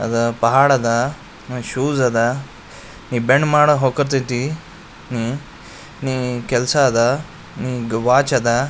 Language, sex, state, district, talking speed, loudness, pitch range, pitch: Kannada, male, Karnataka, Gulbarga, 105 wpm, -18 LUFS, 120-140 Hz, 125 Hz